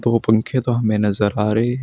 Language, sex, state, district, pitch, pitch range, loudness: Hindi, male, Uttar Pradesh, Shamli, 110 Hz, 105-120 Hz, -18 LUFS